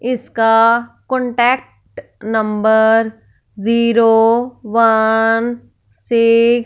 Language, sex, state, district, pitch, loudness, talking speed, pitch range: Hindi, female, Punjab, Fazilka, 225 Hz, -14 LUFS, 65 wpm, 220-235 Hz